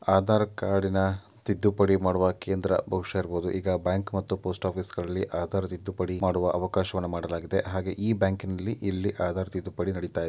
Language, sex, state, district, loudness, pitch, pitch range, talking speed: Kannada, male, Karnataka, Dakshina Kannada, -28 LUFS, 95 Hz, 90-95 Hz, 140 wpm